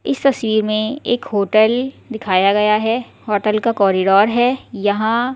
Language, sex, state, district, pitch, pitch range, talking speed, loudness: Hindi, female, Delhi, New Delhi, 220 Hz, 205-245 Hz, 145 wpm, -16 LUFS